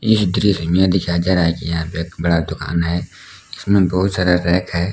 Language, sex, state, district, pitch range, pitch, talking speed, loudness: Hindi, male, Jharkhand, Palamu, 85-95 Hz, 90 Hz, 205 wpm, -17 LUFS